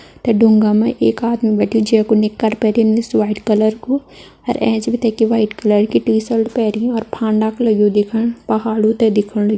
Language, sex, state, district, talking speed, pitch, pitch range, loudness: Garhwali, female, Uttarakhand, Tehri Garhwal, 220 wpm, 220 Hz, 215-230 Hz, -15 LUFS